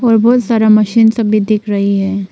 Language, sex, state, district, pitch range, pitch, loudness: Hindi, female, Arunachal Pradesh, Papum Pare, 200-225 Hz, 215 Hz, -11 LUFS